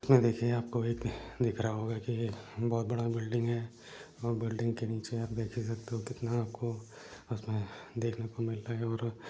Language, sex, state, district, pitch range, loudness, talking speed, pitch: Hindi, male, Uttar Pradesh, Deoria, 115-120 Hz, -35 LUFS, 215 wpm, 115 Hz